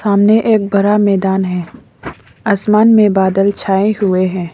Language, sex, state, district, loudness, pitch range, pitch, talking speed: Hindi, female, Arunachal Pradesh, Lower Dibang Valley, -12 LUFS, 190-210 Hz, 200 Hz, 145 wpm